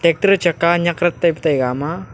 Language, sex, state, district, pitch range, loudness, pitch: Wancho, male, Arunachal Pradesh, Longding, 160-175 Hz, -17 LUFS, 170 Hz